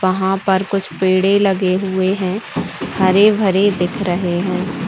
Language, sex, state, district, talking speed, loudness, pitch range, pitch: Hindi, female, Chhattisgarh, Sukma, 135 wpm, -16 LUFS, 185-195 Hz, 190 Hz